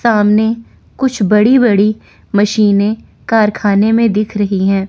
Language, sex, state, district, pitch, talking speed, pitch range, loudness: Hindi, female, Chandigarh, Chandigarh, 210 Hz, 125 wpm, 205-225 Hz, -12 LUFS